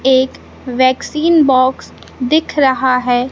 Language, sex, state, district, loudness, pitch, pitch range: Hindi, male, Madhya Pradesh, Katni, -14 LUFS, 260 Hz, 255-280 Hz